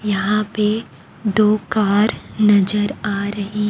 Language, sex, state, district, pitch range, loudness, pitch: Hindi, female, Chhattisgarh, Raipur, 205-215 Hz, -18 LUFS, 210 Hz